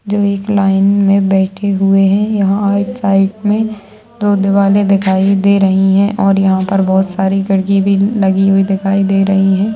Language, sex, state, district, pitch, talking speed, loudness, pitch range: Kumaoni, female, Uttarakhand, Tehri Garhwal, 195 Hz, 185 wpm, -12 LUFS, 195-200 Hz